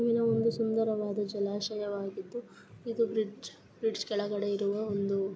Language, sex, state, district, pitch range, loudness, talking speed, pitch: Kannada, female, Karnataka, Belgaum, 200-225 Hz, -32 LUFS, 110 wpm, 210 Hz